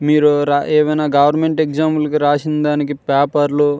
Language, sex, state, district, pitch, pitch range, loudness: Telugu, male, Andhra Pradesh, Srikakulam, 150 Hz, 145-150 Hz, -15 LUFS